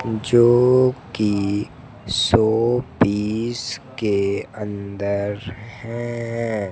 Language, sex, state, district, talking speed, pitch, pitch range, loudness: Hindi, male, Madhya Pradesh, Dhar, 55 wpm, 110 Hz, 105-120 Hz, -20 LUFS